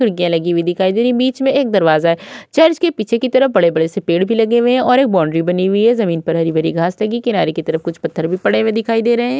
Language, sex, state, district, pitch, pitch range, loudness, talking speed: Hindi, female, Uttar Pradesh, Budaun, 205 Hz, 170-240 Hz, -15 LUFS, 285 wpm